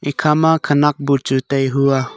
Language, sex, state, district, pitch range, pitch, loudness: Wancho, male, Arunachal Pradesh, Longding, 135-150 Hz, 140 Hz, -16 LUFS